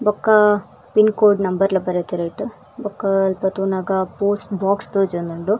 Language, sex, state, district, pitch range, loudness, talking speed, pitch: Tulu, female, Karnataka, Dakshina Kannada, 190-205 Hz, -19 LUFS, 120 wpm, 195 Hz